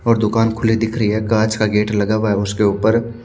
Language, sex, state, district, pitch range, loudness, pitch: Hindi, male, Haryana, Charkhi Dadri, 105-115 Hz, -17 LUFS, 110 Hz